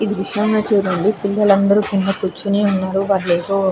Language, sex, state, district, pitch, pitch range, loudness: Telugu, female, Andhra Pradesh, Krishna, 200 Hz, 190-205 Hz, -17 LUFS